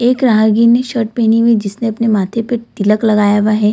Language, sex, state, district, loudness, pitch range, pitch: Hindi, female, Bihar, Samastipur, -13 LUFS, 215-235 Hz, 225 Hz